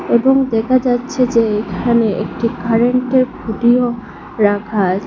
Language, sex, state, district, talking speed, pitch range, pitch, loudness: Bengali, female, Assam, Hailakandi, 120 wpm, 220-250 Hz, 235 Hz, -15 LUFS